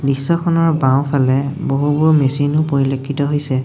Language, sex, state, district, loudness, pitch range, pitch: Assamese, male, Assam, Sonitpur, -16 LUFS, 135-155 Hz, 145 Hz